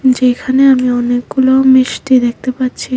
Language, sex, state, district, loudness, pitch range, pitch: Bengali, female, Tripura, West Tripura, -12 LUFS, 250-260 Hz, 255 Hz